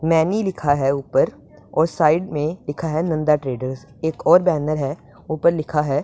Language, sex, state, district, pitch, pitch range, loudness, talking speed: Hindi, female, Punjab, Pathankot, 155 Hz, 145-160 Hz, -20 LUFS, 180 wpm